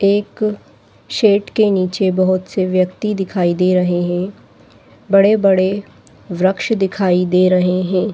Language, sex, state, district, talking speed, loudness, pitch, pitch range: Hindi, female, Uttar Pradesh, Gorakhpur, 125 wpm, -16 LUFS, 185 Hz, 185-200 Hz